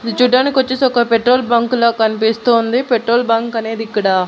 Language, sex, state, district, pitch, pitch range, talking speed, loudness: Telugu, female, Andhra Pradesh, Annamaya, 235 Hz, 225-250 Hz, 140 wpm, -14 LUFS